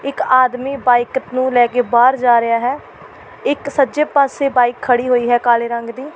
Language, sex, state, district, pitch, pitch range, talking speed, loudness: Punjabi, female, Delhi, New Delhi, 250 Hz, 240-275 Hz, 195 wpm, -15 LUFS